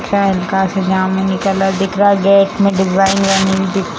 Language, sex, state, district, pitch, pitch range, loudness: Hindi, female, Bihar, Jamui, 195 Hz, 190-195 Hz, -13 LUFS